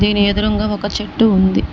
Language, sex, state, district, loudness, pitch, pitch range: Telugu, female, Telangana, Mahabubabad, -16 LUFS, 210 Hz, 205-215 Hz